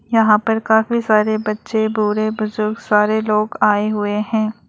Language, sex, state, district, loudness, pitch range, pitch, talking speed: Hindi, female, Arunachal Pradesh, Lower Dibang Valley, -17 LUFS, 210-220 Hz, 215 Hz, 155 wpm